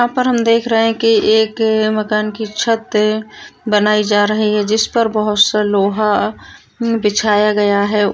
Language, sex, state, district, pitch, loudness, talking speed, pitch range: Hindi, female, Bihar, Kishanganj, 215 Hz, -14 LUFS, 170 wpm, 210-225 Hz